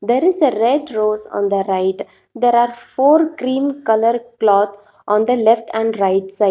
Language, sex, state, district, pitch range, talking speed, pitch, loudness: English, female, Telangana, Hyderabad, 205-255 Hz, 185 wpm, 225 Hz, -16 LUFS